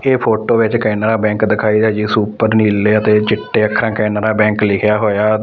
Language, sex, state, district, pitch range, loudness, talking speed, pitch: Punjabi, male, Punjab, Fazilka, 105-110 Hz, -14 LUFS, 175 wpm, 110 Hz